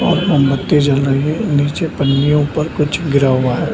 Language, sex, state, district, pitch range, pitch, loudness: Hindi, male, Bihar, Samastipur, 140-155 Hz, 145 Hz, -15 LUFS